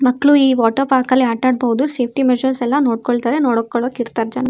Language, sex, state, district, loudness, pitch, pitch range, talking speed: Kannada, female, Karnataka, Shimoga, -16 LUFS, 250 Hz, 240-265 Hz, 185 wpm